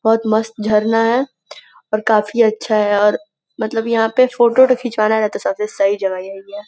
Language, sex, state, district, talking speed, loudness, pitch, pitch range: Hindi, female, Uttar Pradesh, Gorakhpur, 195 wpm, -16 LUFS, 220 Hz, 210-230 Hz